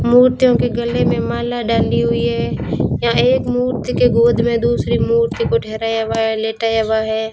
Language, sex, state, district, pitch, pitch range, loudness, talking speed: Hindi, female, Rajasthan, Bikaner, 225 Hz, 220-240 Hz, -16 LUFS, 190 wpm